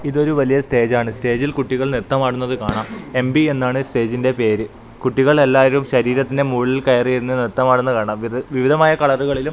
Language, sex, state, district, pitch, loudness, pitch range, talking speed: Malayalam, male, Kerala, Kasaragod, 130 Hz, -17 LUFS, 125-135 Hz, 150 wpm